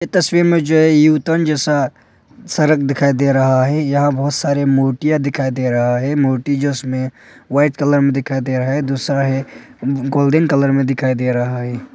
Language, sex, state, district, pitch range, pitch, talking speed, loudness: Hindi, male, Arunachal Pradesh, Longding, 130-150 Hz, 140 Hz, 195 wpm, -16 LUFS